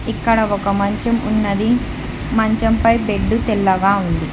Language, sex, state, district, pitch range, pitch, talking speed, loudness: Telugu, female, Telangana, Hyderabad, 200-230 Hz, 220 Hz, 125 wpm, -17 LUFS